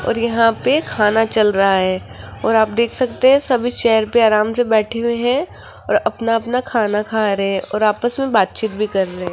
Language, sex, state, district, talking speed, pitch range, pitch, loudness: Hindi, female, Rajasthan, Jaipur, 225 wpm, 210-240 Hz, 225 Hz, -16 LUFS